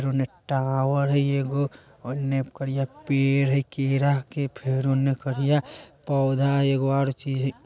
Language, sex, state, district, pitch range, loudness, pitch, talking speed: Bajjika, male, Bihar, Vaishali, 135-140 Hz, -25 LUFS, 135 Hz, 155 wpm